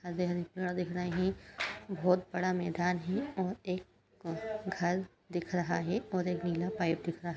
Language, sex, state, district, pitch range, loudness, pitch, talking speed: Hindi, female, Uttar Pradesh, Etah, 175-185 Hz, -35 LUFS, 180 Hz, 170 wpm